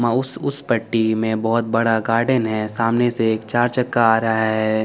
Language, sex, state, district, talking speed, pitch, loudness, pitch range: Hindi, male, Chandigarh, Chandigarh, 200 wpm, 115 Hz, -19 LUFS, 110-120 Hz